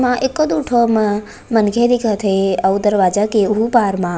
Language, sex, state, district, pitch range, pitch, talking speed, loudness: Chhattisgarhi, female, Chhattisgarh, Raigarh, 200-240 Hz, 215 Hz, 200 wpm, -15 LUFS